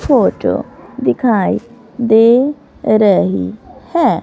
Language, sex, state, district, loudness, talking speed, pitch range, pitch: Hindi, female, Haryana, Rohtak, -14 LUFS, 70 wpm, 195-240 Hz, 220 Hz